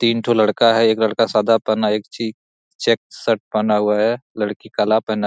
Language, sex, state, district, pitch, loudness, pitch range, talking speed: Hindi, male, Jharkhand, Jamtara, 110 Hz, -18 LUFS, 105-115 Hz, 215 wpm